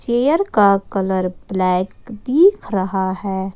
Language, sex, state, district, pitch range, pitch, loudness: Hindi, female, Jharkhand, Ranchi, 190-240 Hz, 195 Hz, -17 LUFS